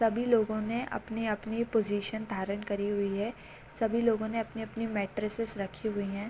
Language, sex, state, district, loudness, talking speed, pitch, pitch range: Hindi, female, Bihar, Sitamarhi, -32 LUFS, 170 wpm, 215 Hz, 205-225 Hz